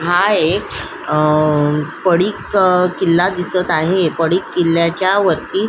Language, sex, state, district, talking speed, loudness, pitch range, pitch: Marathi, female, Maharashtra, Solapur, 125 wpm, -15 LUFS, 165-185 Hz, 175 Hz